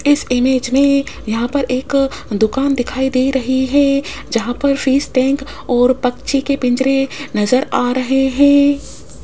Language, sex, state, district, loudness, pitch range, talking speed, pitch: Hindi, female, Rajasthan, Jaipur, -15 LUFS, 250-280 Hz, 150 wpm, 265 Hz